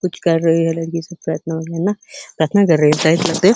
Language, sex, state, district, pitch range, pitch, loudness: Hindi, male, Uttar Pradesh, Hamirpur, 160-175 Hz, 165 Hz, -17 LUFS